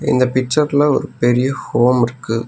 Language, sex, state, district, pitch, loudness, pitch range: Tamil, male, Tamil Nadu, Nilgiris, 125 Hz, -16 LUFS, 120-135 Hz